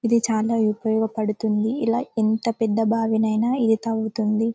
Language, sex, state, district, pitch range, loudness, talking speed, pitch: Telugu, female, Telangana, Karimnagar, 220-230 Hz, -22 LUFS, 120 wpm, 225 Hz